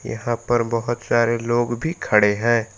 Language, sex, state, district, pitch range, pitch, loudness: Hindi, male, Jharkhand, Palamu, 115-120 Hz, 120 Hz, -20 LUFS